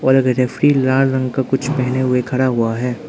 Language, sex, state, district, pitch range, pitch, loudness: Hindi, male, Arunachal Pradesh, Lower Dibang Valley, 125-135 Hz, 130 Hz, -17 LUFS